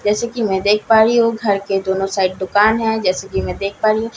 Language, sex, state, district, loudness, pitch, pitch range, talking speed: Hindi, female, Bihar, Katihar, -16 LUFS, 205 Hz, 195-220 Hz, 330 wpm